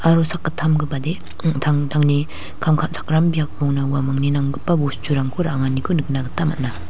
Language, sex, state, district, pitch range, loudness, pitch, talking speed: Garo, female, Meghalaya, West Garo Hills, 140-160 Hz, -20 LUFS, 145 Hz, 115 wpm